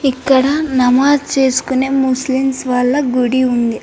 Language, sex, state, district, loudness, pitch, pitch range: Telugu, female, Andhra Pradesh, Anantapur, -14 LUFS, 260 Hz, 250-270 Hz